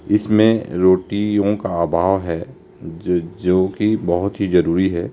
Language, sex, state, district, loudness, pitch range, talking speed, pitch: Hindi, male, Himachal Pradesh, Shimla, -18 LUFS, 90-105 Hz, 140 wpm, 95 Hz